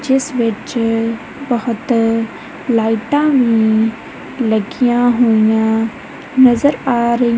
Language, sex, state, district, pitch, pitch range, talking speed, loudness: Punjabi, female, Punjab, Kapurthala, 235 Hz, 225-260 Hz, 80 wpm, -15 LUFS